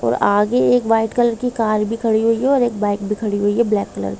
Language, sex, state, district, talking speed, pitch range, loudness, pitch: Hindi, female, Jharkhand, Jamtara, 285 wpm, 205-235 Hz, -17 LUFS, 220 Hz